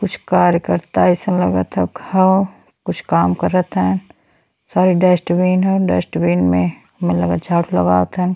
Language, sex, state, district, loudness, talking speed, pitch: Bhojpuri, female, Uttar Pradesh, Deoria, -16 LUFS, 145 wpm, 175 Hz